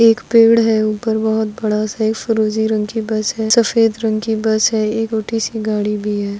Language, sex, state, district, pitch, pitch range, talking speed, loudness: Hindi, female, Goa, North and South Goa, 220 Hz, 215-225 Hz, 205 wpm, -16 LUFS